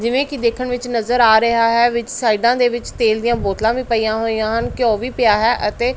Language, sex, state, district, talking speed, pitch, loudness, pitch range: Punjabi, female, Punjab, Pathankot, 240 wpm, 235 Hz, -17 LUFS, 225-240 Hz